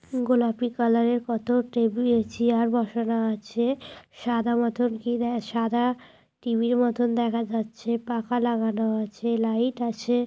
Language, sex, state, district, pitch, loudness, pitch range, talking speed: Bengali, female, West Bengal, Paschim Medinipur, 235 Hz, -25 LUFS, 230-245 Hz, 135 wpm